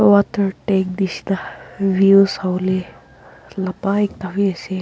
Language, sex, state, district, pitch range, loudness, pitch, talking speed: Nagamese, female, Nagaland, Kohima, 185-200 Hz, -18 LUFS, 195 Hz, 100 wpm